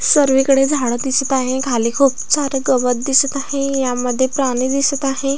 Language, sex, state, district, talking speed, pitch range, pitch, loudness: Marathi, female, Maharashtra, Aurangabad, 155 wpm, 255-275 Hz, 270 Hz, -16 LUFS